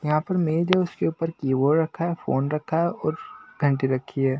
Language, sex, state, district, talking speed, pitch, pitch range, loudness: Hindi, male, Maharashtra, Washim, 220 wpm, 160 Hz, 140-170 Hz, -24 LUFS